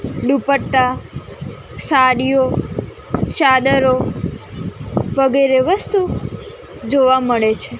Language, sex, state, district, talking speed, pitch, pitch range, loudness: Gujarati, female, Gujarat, Gandhinagar, 60 wpm, 265 Hz, 255-275 Hz, -16 LUFS